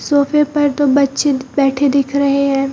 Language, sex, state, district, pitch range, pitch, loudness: Hindi, female, Bihar, Purnia, 275-285 Hz, 280 Hz, -14 LUFS